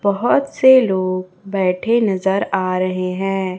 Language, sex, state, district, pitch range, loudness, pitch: Hindi, male, Chhattisgarh, Raipur, 185-205 Hz, -17 LUFS, 195 Hz